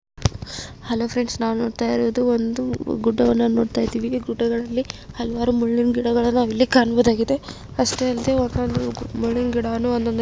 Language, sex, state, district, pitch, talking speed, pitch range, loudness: Kannada, female, Karnataka, Gulbarga, 235 Hz, 140 wpm, 230-245 Hz, -21 LUFS